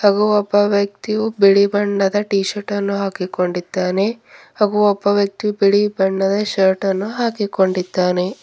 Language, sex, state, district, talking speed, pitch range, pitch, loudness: Kannada, female, Karnataka, Bidar, 115 wpm, 195-205 Hz, 200 Hz, -17 LUFS